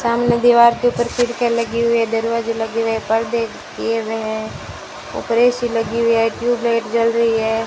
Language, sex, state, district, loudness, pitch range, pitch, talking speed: Hindi, female, Rajasthan, Bikaner, -17 LUFS, 225-235 Hz, 230 Hz, 205 wpm